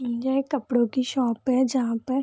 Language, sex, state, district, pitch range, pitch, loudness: Hindi, female, Bihar, Vaishali, 240-265 Hz, 255 Hz, -24 LUFS